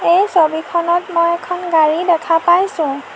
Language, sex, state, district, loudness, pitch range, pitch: Assamese, female, Assam, Sonitpur, -15 LUFS, 320-350 Hz, 340 Hz